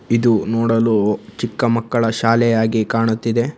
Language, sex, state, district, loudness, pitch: Kannada, male, Karnataka, Bangalore, -17 LUFS, 115 Hz